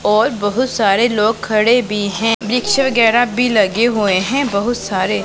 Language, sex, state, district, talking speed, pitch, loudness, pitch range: Hindi, female, Punjab, Pathankot, 170 wpm, 225 Hz, -15 LUFS, 210-245 Hz